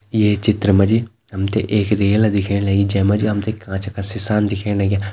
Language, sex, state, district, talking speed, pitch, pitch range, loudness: Hindi, male, Uttarakhand, Tehri Garhwal, 235 wpm, 100 Hz, 100-105 Hz, -18 LUFS